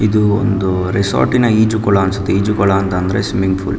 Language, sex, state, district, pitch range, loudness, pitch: Kannada, male, Karnataka, Mysore, 95-105 Hz, -14 LUFS, 100 Hz